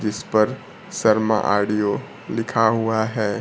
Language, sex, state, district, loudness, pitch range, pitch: Hindi, male, Bihar, Kaimur, -21 LUFS, 105-110 Hz, 110 Hz